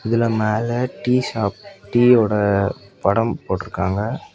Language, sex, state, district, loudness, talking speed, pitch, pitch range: Tamil, male, Tamil Nadu, Kanyakumari, -19 LUFS, 95 wpm, 110 Hz, 100-120 Hz